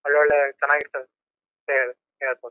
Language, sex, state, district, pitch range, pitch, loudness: Kannada, male, Karnataka, Chamarajanagar, 130-145 Hz, 140 Hz, -22 LUFS